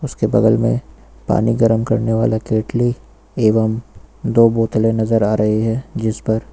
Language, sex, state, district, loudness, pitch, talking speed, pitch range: Hindi, male, Uttar Pradesh, Lucknow, -17 LUFS, 110 Hz, 155 wpm, 110-115 Hz